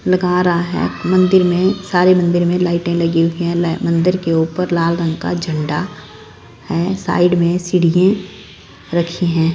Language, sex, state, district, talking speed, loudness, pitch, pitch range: Hindi, female, Punjab, Fazilka, 155 wpm, -16 LUFS, 175 Hz, 165-180 Hz